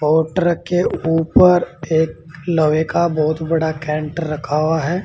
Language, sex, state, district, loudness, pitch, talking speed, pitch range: Hindi, male, Uttar Pradesh, Saharanpur, -17 LUFS, 160 Hz, 145 wpm, 155-170 Hz